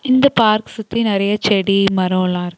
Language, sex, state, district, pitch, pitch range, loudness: Tamil, female, Tamil Nadu, Nilgiris, 205 Hz, 190-220 Hz, -16 LUFS